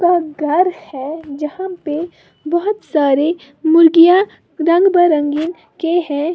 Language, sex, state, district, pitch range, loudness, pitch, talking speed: Hindi, female, Uttar Pradesh, Lalitpur, 300-350 Hz, -15 LUFS, 330 Hz, 115 wpm